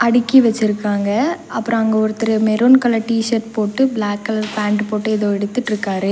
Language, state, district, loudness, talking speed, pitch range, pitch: Tamil, Tamil Nadu, Nilgiris, -17 LUFS, 145 wpm, 210-230 Hz, 220 Hz